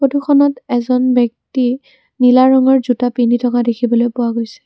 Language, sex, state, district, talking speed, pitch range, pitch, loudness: Assamese, female, Assam, Kamrup Metropolitan, 140 wpm, 240-265 Hz, 250 Hz, -14 LUFS